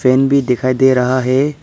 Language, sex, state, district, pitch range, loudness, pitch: Hindi, male, Arunachal Pradesh, Papum Pare, 130-135 Hz, -14 LUFS, 130 Hz